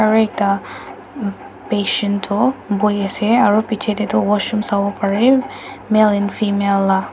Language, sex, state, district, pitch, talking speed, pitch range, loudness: Nagamese, female, Nagaland, Dimapur, 210 Hz, 145 wpm, 200-215 Hz, -17 LUFS